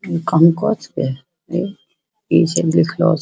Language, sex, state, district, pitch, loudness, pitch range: Angika, female, Bihar, Bhagalpur, 170 Hz, -17 LUFS, 130-200 Hz